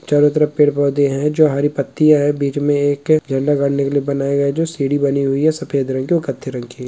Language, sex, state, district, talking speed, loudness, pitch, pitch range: Hindi, female, Bihar, Purnia, 270 wpm, -16 LUFS, 140 Hz, 140-150 Hz